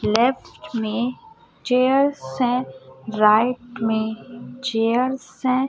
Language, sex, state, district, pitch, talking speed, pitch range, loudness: Hindi, male, Chhattisgarh, Raipur, 245 Hz, 85 wpm, 220-260 Hz, -21 LUFS